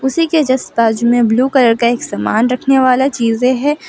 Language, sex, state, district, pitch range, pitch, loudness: Hindi, female, Gujarat, Valsad, 235-270 Hz, 255 Hz, -13 LUFS